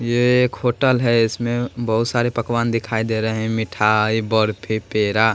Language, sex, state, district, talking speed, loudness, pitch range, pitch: Hindi, male, Bihar, West Champaran, 180 wpm, -19 LUFS, 110-120 Hz, 115 Hz